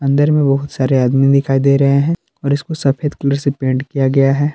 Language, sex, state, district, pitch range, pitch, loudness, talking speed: Hindi, male, Jharkhand, Palamu, 135-145 Hz, 140 Hz, -15 LUFS, 240 wpm